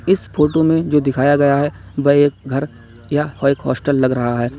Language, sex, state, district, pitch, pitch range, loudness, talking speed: Hindi, male, Uttar Pradesh, Lalitpur, 140 Hz, 130-150 Hz, -16 LUFS, 220 wpm